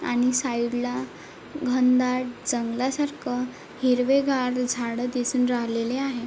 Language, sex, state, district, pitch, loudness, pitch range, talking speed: Marathi, female, Maharashtra, Chandrapur, 250 Hz, -25 LUFS, 240-255 Hz, 95 wpm